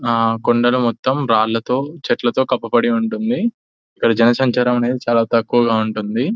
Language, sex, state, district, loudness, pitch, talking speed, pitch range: Telugu, male, Telangana, Nalgonda, -17 LUFS, 120 Hz, 130 wpm, 115-130 Hz